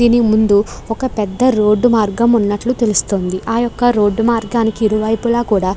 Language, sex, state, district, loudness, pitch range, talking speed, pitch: Telugu, female, Andhra Pradesh, Krishna, -15 LUFS, 210-235 Hz, 165 wpm, 225 Hz